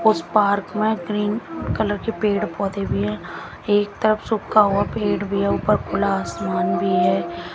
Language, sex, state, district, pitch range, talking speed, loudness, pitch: Hindi, female, Haryana, Jhajjar, 185-215 Hz, 165 wpm, -21 LUFS, 205 Hz